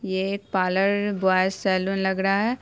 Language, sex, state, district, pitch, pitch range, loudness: Hindi, female, Bihar, Saharsa, 195 Hz, 190-200 Hz, -23 LUFS